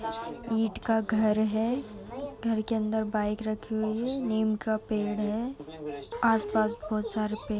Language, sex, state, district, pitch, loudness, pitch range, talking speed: Hindi, female, Uttar Pradesh, Jalaun, 220 Hz, -30 LUFS, 215-225 Hz, 160 wpm